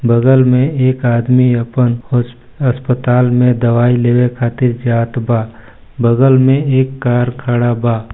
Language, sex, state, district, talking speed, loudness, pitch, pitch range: Hindi, male, Chhattisgarh, Balrampur, 140 wpm, -13 LUFS, 120 Hz, 120-130 Hz